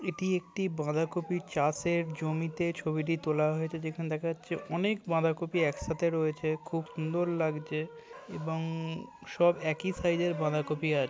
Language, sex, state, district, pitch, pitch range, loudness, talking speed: Bengali, male, West Bengal, Kolkata, 165 Hz, 155-175 Hz, -32 LUFS, 130 wpm